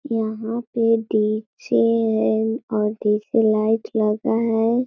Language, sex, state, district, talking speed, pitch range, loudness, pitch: Hindi, female, Bihar, East Champaran, 125 wpm, 210-230 Hz, -21 LUFS, 220 Hz